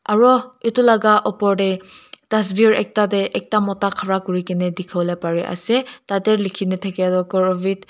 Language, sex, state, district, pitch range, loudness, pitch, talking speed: Nagamese, female, Nagaland, Kohima, 185-220 Hz, -18 LUFS, 200 Hz, 165 wpm